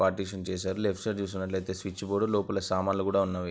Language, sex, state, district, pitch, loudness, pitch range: Telugu, male, Andhra Pradesh, Anantapur, 95 Hz, -30 LUFS, 95-100 Hz